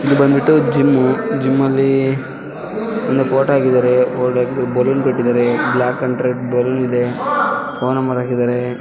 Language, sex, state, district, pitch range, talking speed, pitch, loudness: Kannada, male, Karnataka, Belgaum, 125-140 Hz, 115 wpm, 130 Hz, -16 LUFS